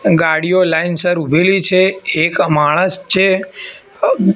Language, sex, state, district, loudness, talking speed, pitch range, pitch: Gujarati, male, Gujarat, Gandhinagar, -13 LUFS, 110 wpm, 160-190 Hz, 180 Hz